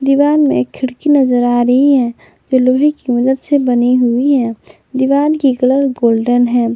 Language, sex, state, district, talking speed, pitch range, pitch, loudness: Hindi, female, Jharkhand, Garhwa, 175 wpm, 245-275 Hz, 255 Hz, -13 LUFS